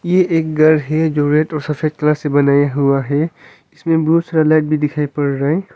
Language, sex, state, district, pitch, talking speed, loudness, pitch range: Hindi, male, Arunachal Pradesh, Longding, 155 Hz, 230 wpm, -15 LUFS, 145-160 Hz